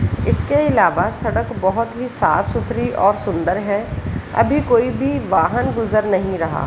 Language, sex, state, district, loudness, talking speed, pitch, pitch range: Hindi, female, Jharkhand, Sahebganj, -18 LUFS, 145 wpm, 195 Hz, 165-225 Hz